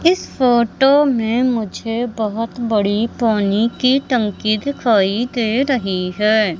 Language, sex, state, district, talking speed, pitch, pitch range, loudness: Hindi, female, Madhya Pradesh, Katni, 120 wpm, 230 Hz, 215-250 Hz, -17 LUFS